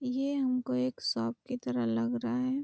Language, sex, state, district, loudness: Hindi, female, Uttar Pradesh, Hamirpur, -32 LUFS